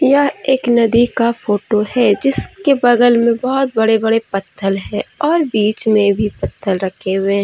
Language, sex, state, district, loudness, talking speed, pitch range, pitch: Hindi, female, Jharkhand, Deoghar, -15 LUFS, 175 wpm, 205-255 Hz, 225 Hz